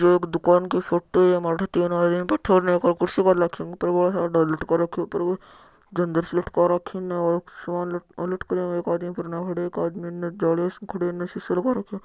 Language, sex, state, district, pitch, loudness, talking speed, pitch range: Marwari, male, Rajasthan, Churu, 175 Hz, -23 LUFS, 235 wpm, 175-180 Hz